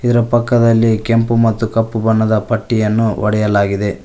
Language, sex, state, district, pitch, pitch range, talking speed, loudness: Kannada, male, Karnataka, Koppal, 115 Hz, 110-115 Hz, 105 wpm, -14 LUFS